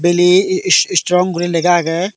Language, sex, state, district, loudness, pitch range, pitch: Chakma, male, Tripura, Dhalai, -13 LUFS, 175-185 Hz, 180 Hz